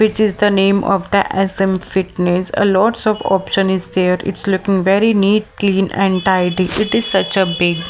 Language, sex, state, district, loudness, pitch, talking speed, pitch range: English, female, Maharashtra, Mumbai Suburban, -15 LUFS, 195 Hz, 195 wpm, 185-200 Hz